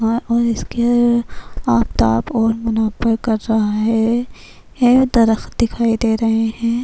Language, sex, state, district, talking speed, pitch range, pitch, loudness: Urdu, female, Bihar, Kishanganj, 130 wpm, 220-235 Hz, 225 Hz, -17 LUFS